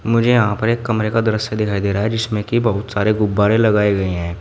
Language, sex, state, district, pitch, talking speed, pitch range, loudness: Hindi, male, Uttar Pradesh, Shamli, 110 Hz, 260 wpm, 105-115 Hz, -17 LUFS